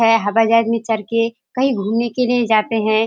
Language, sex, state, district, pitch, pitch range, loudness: Hindi, female, Bihar, Kishanganj, 230 Hz, 220-230 Hz, -17 LUFS